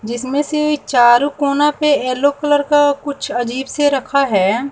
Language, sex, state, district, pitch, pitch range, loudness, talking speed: Hindi, female, Bihar, West Champaran, 280 Hz, 255-290 Hz, -15 LUFS, 165 wpm